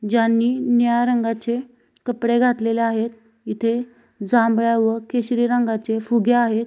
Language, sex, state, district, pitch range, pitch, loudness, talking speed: Marathi, female, Maharashtra, Sindhudurg, 225-240 Hz, 230 Hz, -20 LUFS, 115 wpm